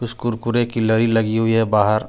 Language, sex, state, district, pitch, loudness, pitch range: Hindi, male, Jharkhand, Deoghar, 115 Hz, -18 LUFS, 110-120 Hz